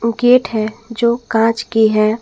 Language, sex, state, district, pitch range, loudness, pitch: Hindi, female, Jharkhand, Garhwa, 220-235 Hz, -15 LUFS, 230 Hz